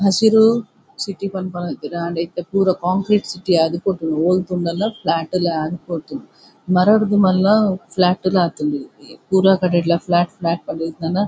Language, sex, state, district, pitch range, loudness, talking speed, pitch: Tulu, female, Karnataka, Dakshina Kannada, 170-195 Hz, -18 LUFS, 150 wpm, 180 Hz